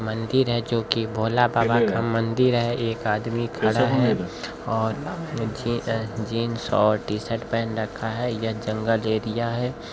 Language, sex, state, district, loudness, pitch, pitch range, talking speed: Maithili, male, Bihar, Bhagalpur, -24 LUFS, 115 Hz, 110-120 Hz, 155 wpm